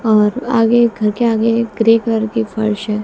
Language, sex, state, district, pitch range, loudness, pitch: Hindi, female, Bihar, West Champaran, 215-230 Hz, -15 LUFS, 225 Hz